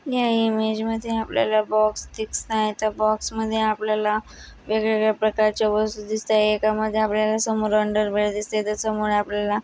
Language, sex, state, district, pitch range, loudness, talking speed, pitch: Marathi, female, Maharashtra, Dhule, 215-220 Hz, -22 LUFS, 170 wpm, 215 Hz